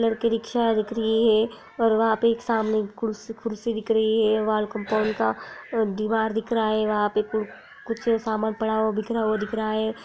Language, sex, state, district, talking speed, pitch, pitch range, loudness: Hindi, female, Bihar, Jahanabad, 205 wpm, 220 Hz, 215-225 Hz, -24 LUFS